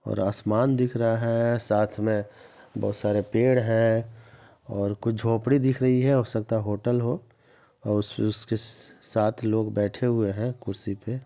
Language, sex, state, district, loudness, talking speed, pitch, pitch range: Hindi, male, Bihar, Samastipur, -25 LUFS, 185 wpm, 115 Hz, 105-120 Hz